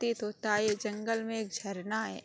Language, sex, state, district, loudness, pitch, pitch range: Hindi, female, Uttar Pradesh, Hamirpur, -33 LUFS, 215 Hz, 210-225 Hz